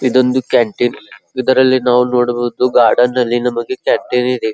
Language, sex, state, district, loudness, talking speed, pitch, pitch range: Kannada, female, Karnataka, Belgaum, -14 LUFS, 145 wpm, 125 Hz, 120-130 Hz